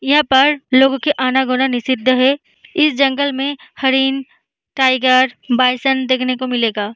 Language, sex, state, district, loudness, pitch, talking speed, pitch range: Hindi, female, Bihar, Vaishali, -15 LUFS, 265 Hz, 140 wpm, 255-275 Hz